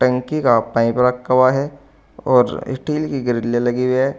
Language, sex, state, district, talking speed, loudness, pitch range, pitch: Hindi, male, Uttar Pradesh, Saharanpur, 185 wpm, -17 LUFS, 120-140 Hz, 130 Hz